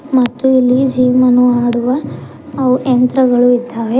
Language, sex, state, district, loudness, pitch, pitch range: Kannada, female, Karnataka, Bidar, -12 LUFS, 250 Hz, 245-260 Hz